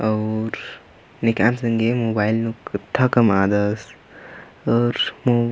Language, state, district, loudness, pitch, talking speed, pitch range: Kurukh, Chhattisgarh, Jashpur, -20 LUFS, 115 Hz, 100 wpm, 110-120 Hz